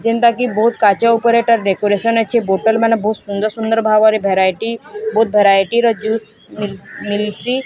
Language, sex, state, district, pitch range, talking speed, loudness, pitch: Odia, female, Odisha, Sambalpur, 205-230 Hz, 150 wpm, -15 LUFS, 220 Hz